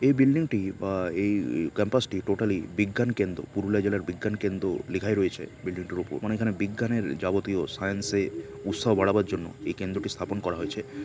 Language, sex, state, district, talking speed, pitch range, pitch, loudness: Bengali, male, West Bengal, Purulia, 185 wpm, 95-105 Hz, 100 Hz, -28 LUFS